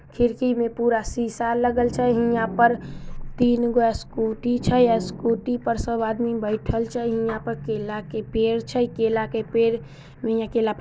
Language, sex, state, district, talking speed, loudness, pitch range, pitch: Maithili, female, Bihar, Samastipur, 155 wpm, -23 LUFS, 220-240 Hz, 230 Hz